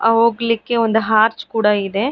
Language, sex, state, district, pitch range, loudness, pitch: Kannada, male, Karnataka, Mysore, 215-230 Hz, -16 LUFS, 225 Hz